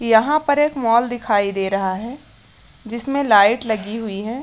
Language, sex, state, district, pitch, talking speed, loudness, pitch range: Hindi, female, Chhattisgarh, Raigarh, 230 Hz, 175 wpm, -18 LUFS, 205-245 Hz